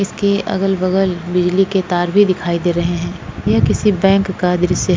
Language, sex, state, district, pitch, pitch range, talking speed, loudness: Hindi, female, Goa, North and South Goa, 185 Hz, 175-195 Hz, 205 wpm, -16 LUFS